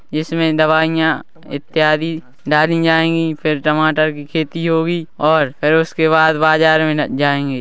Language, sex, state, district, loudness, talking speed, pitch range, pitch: Hindi, male, Chhattisgarh, Rajnandgaon, -15 LUFS, 140 wpm, 150-160 Hz, 155 Hz